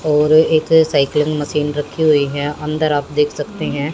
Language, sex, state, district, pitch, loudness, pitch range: Hindi, female, Haryana, Jhajjar, 150 Hz, -16 LUFS, 145-155 Hz